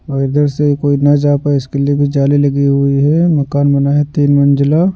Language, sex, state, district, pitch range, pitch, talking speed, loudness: Hindi, male, Bihar, Patna, 140-145 Hz, 145 Hz, 230 wpm, -12 LUFS